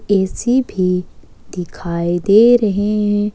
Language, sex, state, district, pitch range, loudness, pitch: Hindi, female, Jharkhand, Ranchi, 180-210 Hz, -15 LUFS, 200 Hz